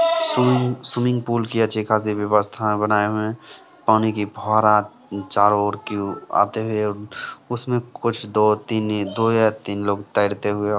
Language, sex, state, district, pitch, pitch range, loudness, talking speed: Hindi, male, Bihar, Samastipur, 105 Hz, 105-115 Hz, -21 LUFS, 165 wpm